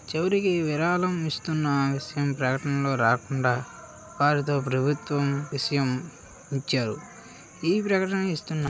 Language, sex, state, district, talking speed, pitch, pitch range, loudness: Telugu, male, Andhra Pradesh, Srikakulam, 90 wpm, 145 Hz, 135-160 Hz, -26 LUFS